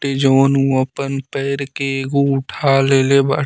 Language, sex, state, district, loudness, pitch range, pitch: Bhojpuri, male, Bihar, Muzaffarpur, -16 LUFS, 135-140 Hz, 135 Hz